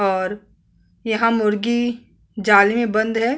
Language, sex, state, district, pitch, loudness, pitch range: Hindi, female, Chhattisgarh, Kabirdham, 220 Hz, -18 LUFS, 205-235 Hz